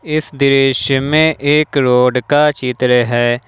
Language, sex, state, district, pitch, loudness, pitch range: Hindi, male, Jharkhand, Ranchi, 135 Hz, -13 LUFS, 125-150 Hz